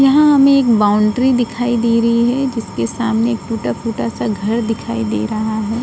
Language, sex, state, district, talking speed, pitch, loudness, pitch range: Hindi, female, Uttar Pradesh, Budaun, 195 wpm, 230 Hz, -15 LUFS, 215-240 Hz